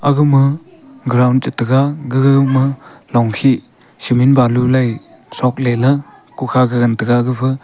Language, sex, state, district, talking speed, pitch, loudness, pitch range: Wancho, male, Arunachal Pradesh, Longding, 125 wpm, 130 Hz, -14 LUFS, 125-135 Hz